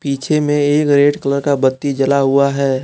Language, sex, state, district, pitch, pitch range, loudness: Hindi, male, Jharkhand, Deoghar, 140 Hz, 135-145 Hz, -14 LUFS